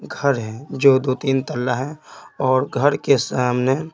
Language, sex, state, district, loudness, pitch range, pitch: Hindi, male, Bihar, Patna, -19 LUFS, 125-140 Hz, 130 Hz